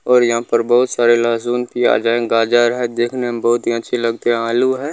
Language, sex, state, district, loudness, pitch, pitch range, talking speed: Maithili, male, Bihar, Saharsa, -16 LUFS, 120 Hz, 115-125 Hz, 230 wpm